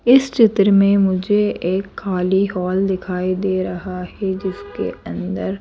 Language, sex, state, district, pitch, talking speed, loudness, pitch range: Hindi, female, Madhya Pradesh, Bhopal, 190 Hz, 140 wpm, -18 LUFS, 185-200 Hz